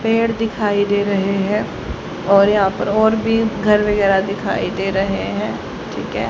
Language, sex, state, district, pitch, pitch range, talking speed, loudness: Hindi, male, Haryana, Charkhi Dadri, 205 Hz, 195-220 Hz, 170 wpm, -18 LUFS